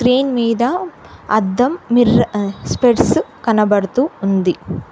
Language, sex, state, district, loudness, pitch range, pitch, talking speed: Telugu, female, Telangana, Hyderabad, -16 LUFS, 205-250 Hz, 235 Hz, 95 wpm